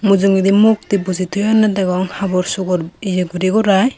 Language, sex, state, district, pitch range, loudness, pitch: Chakma, female, Tripura, Dhalai, 185-205 Hz, -15 LUFS, 195 Hz